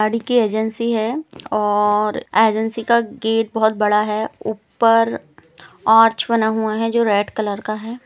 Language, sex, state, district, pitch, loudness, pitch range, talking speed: Hindi, female, Chhattisgarh, Rajnandgaon, 220 Hz, -18 LUFS, 215-230 Hz, 155 wpm